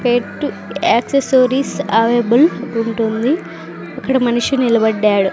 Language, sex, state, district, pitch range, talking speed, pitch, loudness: Telugu, female, Andhra Pradesh, Sri Satya Sai, 225-265 Hz, 80 wpm, 240 Hz, -15 LUFS